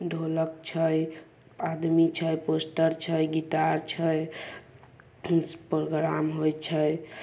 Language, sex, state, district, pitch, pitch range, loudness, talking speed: Maithili, male, Bihar, Samastipur, 160 Hz, 155-165 Hz, -28 LUFS, 75 wpm